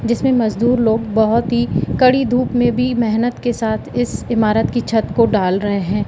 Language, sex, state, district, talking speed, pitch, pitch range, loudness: Hindi, female, Madhya Pradesh, Katni, 195 wpm, 230 Hz, 215-240 Hz, -16 LUFS